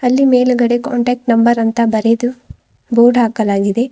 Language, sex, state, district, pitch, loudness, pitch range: Kannada, female, Karnataka, Bidar, 240 Hz, -13 LUFS, 230-245 Hz